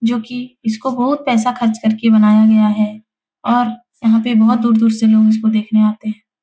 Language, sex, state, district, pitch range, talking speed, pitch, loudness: Hindi, female, Bihar, Jahanabad, 220-240 Hz, 195 wpm, 225 Hz, -14 LUFS